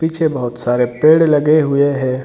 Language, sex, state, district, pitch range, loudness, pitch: Hindi, male, Bihar, Gaya, 125-155 Hz, -14 LUFS, 145 Hz